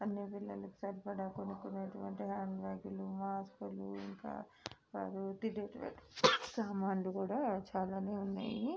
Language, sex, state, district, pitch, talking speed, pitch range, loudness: Telugu, female, Andhra Pradesh, Srikakulam, 195 Hz, 60 wpm, 190-200 Hz, -40 LUFS